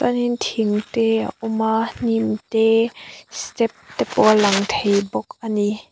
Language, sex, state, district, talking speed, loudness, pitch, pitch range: Mizo, female, Mizoram, Aizawl, 160 wpm, -20 LUFS, 220 Hz, 205-225 Hz